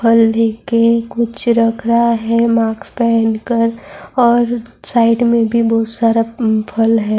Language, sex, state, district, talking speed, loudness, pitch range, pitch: Urdu, female, Bihar, Saharsa, 150 wpm, -14 LUFS, 225-235 Hz, 230 Hz